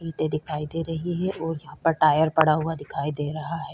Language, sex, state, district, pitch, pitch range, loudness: Hindi, female, Chhattisgarh, Korba, 155 Hz, 150-165 Hz, -25 LUFS